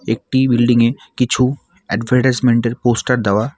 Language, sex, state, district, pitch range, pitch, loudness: Bengali, male, West Bengal, Alipurduar, 115-125 Hz, 120 Hz, -16 LUFS